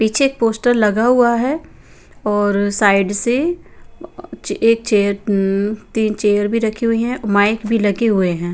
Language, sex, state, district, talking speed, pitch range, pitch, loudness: Hindi, female, Bihar, Patna, 155 wpm, 205-235 Hz, 215 Hz, -16 LUFS